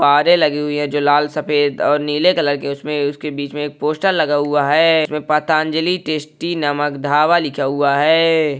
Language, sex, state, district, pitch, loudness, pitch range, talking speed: Hindi, male, Maharashtra, Pune, 150 Hz, -16 LUFS, 145-155 Hz, 195 wpm